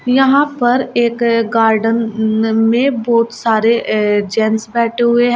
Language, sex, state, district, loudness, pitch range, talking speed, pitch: Hindi, female, Uttar Pradesh, Shamli, -14 LUFS, 220-240 Hz, 135 wpm, 230 Hz